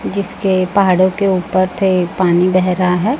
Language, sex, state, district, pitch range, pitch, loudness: Hindi, female, Chhattisgarh, Raipur, 180-195 Hz, 185 Hz, -14 LUFS